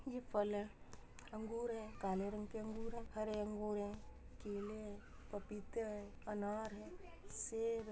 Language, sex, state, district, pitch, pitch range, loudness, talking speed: Hindi, female, Uttar Pradesh, Muzaffarnagar, 215 Hz, 205-225 Hz, -45 LUFS, 160 wpm